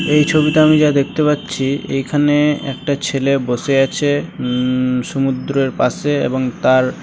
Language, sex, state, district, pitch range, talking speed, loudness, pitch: Bengali, male, West Bengal, Malda, 130-150 Hz, 145 wpm, -16 LUFS, 140 Hz